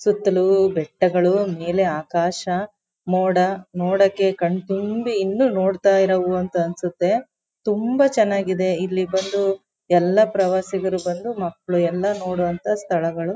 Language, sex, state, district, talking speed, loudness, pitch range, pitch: Kannada, female, Karnataka, Chamarajanagar, 110 wpm, -20 LUFS, 180-200 Hz, 185 Hz